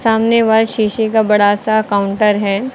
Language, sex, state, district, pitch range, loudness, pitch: Hindi, female, Uttar Pradesh, Lucknow, 205-225 Hz, -13 LUFS, 215 Hz